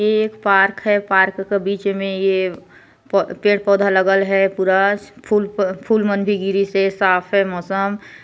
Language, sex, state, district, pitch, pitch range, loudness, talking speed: Hindi, female, Chhattisgarh, Sarguja, 195 Hz, 195-205 Hz, -17 LUFS, 175 wpm